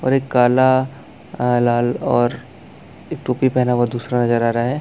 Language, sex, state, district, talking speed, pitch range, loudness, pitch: Hindi, male, Chhattisgarh, Bastar, 175 wpm, 120-130 Hz, -18 LUFS, 125 Hz